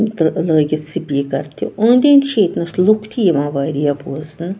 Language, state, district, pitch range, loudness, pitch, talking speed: Kashmiri, Punjab, Kapurthala, 145-215 Hz, -16 LUFS, 170 Hz, 145 wpm